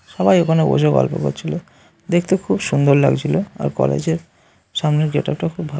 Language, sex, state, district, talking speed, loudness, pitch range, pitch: Bengali, male, West Bengal, North 24 Parganas, 165 wpm, -18 LUFS, 150-175 Hz, 165 Hz